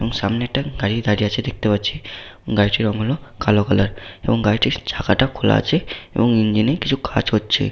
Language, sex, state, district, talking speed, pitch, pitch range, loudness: Bengali, male, West Bengal, Paschim Medinipur, 185 wpm, 110 Hz, 105-125 Hz, -19 LUFS